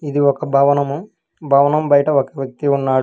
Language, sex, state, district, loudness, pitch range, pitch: Telugu, male, Telangana, Hyderabad, -16 LUFS, 140-145 Hz, 140 Hz